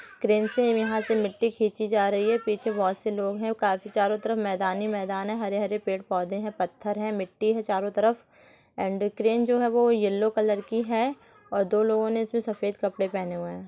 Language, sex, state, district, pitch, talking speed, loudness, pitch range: Hindi, female, Uttar Pradesh, Etah, 210 Hz, 225 wpm, -26 LUFS, 200-225 Hz